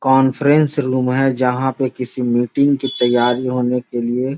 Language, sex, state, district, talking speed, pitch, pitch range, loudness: Hindi, male, Bihar, Gopalganj, 165 wpm, 130 Hz, 125-135 Hz, -17 LUFS